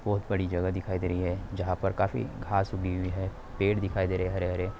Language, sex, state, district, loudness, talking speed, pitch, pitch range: Hindi, male, Bihar, Darbhanga, -30 LUFS, 260 wpm, 95 Hz, 90-100 Hz